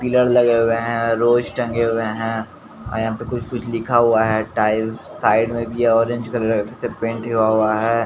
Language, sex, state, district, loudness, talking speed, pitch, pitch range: Hindi, male, Bihar, Patna, -19 LUFS, 185 wpm, 115 Hz, 110-120 Hz